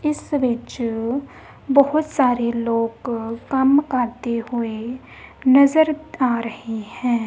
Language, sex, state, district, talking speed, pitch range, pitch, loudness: Punjabi, female, Punjab, Kapurthala, 100 wpm, 230-280 Hz, 245 Hz, -20 LUFS